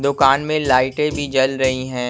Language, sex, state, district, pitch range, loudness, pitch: Hindi, male, Punjab, Kapurthala, 130-145 Hz, -17 LUFS, 135 Hz